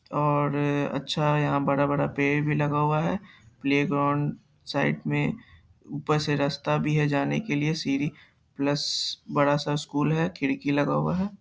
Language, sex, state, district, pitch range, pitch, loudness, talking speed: Hindi, male, Bihar, Saharsa, 140-150 Hz, 145 Hz, -26 LUFS, 160 wpm